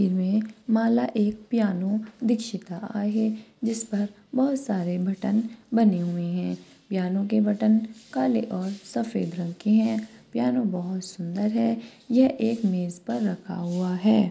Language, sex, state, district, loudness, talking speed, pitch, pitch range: Hindi, female, Maharashtra, Pune, -26 LUFS, 135 wpm, 215 Hz, 185-230 Hz